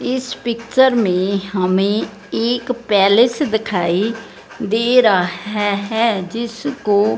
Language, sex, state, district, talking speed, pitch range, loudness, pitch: Hindi, female, Punjab, Fazilka, 100 wpm, 195-235 Hz, -17 LUFS, 220 Hz